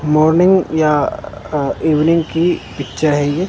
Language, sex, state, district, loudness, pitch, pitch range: Hindi, male, Punjab, Kapurthala, -15 LUFS, 155 Hz, 150-165 Hz